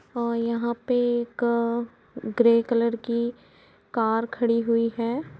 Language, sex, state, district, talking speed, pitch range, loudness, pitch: Hindi, female, Uttar Pradesh, Jalaun, 120 wpm, 230-240 Hz, -25 LUFS, 235 Hz